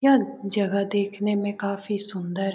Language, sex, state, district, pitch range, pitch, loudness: Hindi, male, Bihar, Jamui, 200-210 Hz, 200 Hz, -25 LUFS